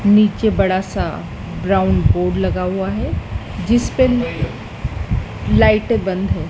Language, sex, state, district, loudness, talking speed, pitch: Hindi, female, Madhya Pradesh, Dhar, -18 LUFS, 110 wpm, 185 Hz